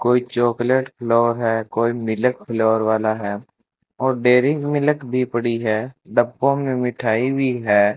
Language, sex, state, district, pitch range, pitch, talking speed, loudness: Hindi, male, Rajasthan, Bikaner, 115-130 Hz, 120 Hz, 150 wpm, -20 LUFS